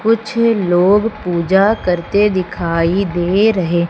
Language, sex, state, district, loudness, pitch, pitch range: Hindi, female, Madhya Pradesh, Umaria, -15 LUFS, 190 Hz, 175-210 Hz